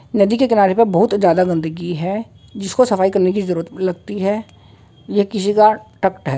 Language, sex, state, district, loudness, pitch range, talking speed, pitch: Hindi, female, Uttar Pradesh, Jalaun, -17 LUFS, 185-210 Hz, 180 wpm, 200 Hz